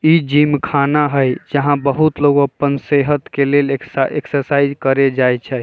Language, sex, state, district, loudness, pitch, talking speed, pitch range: Bajjika, male, Bihar, Vaishali, -15 LUFS, 140 Hz, 170 wpm, 140-145 Hz